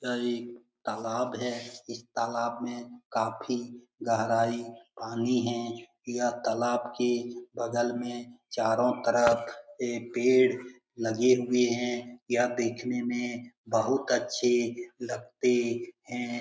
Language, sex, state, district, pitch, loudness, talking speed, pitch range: Hindi, male, Bihar, Lakhisarai, 120 Hz, -29 LUFS, 110 wpm, 120-125 Hz